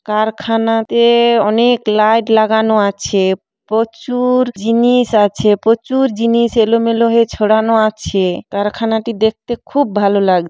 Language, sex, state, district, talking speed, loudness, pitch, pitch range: Bengali, female, West Bengal, Paschim Medinipur, 110 wpm, -13 LUFS, 225 Hz, 210-235 Hz